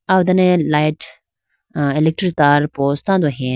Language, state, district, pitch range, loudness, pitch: Idu Mishmi, Arunachal Pradesh, Lower Dibang Valley, 145-180 Hz, -16 LUFS, 155 Hz